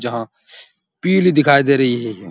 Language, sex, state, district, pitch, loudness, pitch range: Hindi, male, Uttar Pradesh, Muzaffarnagar, 140 Hz, -15 LUFS, 120-180 Hz